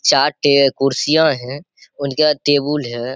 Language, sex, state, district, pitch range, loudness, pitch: Hindi, male, Bihar, Saharsa, 135-150 Hz, -16 LUFS, 140 Hz